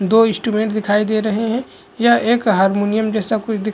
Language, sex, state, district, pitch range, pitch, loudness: Hindi, male, Chhattisgarh, Korba, 210-225 Hz, 215 Hz, -17 LUFS